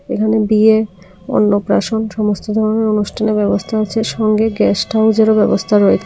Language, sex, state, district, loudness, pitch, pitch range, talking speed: Bengali, female, Tripura, South Tripura, -14 LUFS, 215 Hz, 210-220 Hz, 150 wpm